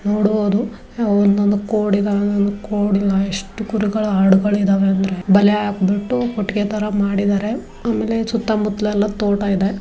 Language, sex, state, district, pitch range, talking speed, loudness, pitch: Kannada, female, Karnataka, Dharwad, 200-210 Hz, 120 wpm, -18 LUFS, 205 Hz